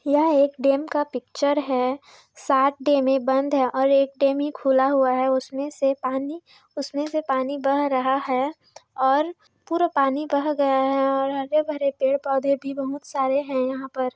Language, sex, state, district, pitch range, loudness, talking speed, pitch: Hindi, female, Chhattisgarh, Raigarh, 265-285 Hz, -22 LUFS, 170 wpm, 275 Hz